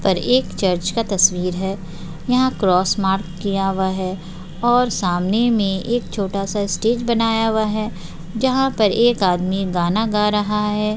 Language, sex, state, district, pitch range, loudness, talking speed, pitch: Hindi, female, Bihar, Jahanabad, 185-225 Hz, -19 LUFS, 155 wpm, 200 Hz